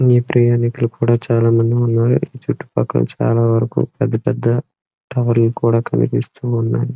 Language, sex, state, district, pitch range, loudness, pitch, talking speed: Telugu, male, Andhra Pradesh, Srikakulam, 115-120 Hz, -17 LUFS, 115 Hz, 130 wpm